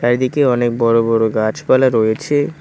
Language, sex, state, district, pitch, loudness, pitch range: Bengali, male, West Bengal, Cooch Behar, 120 Hz, -15 LUFS, 115-130 Hz